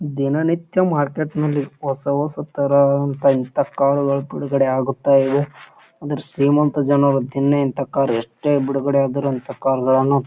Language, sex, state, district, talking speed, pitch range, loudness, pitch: Kannada, male, Karnataka, Bijapur, 150 wpm, 135-145 Hz, -19 LUFS, 140 Hz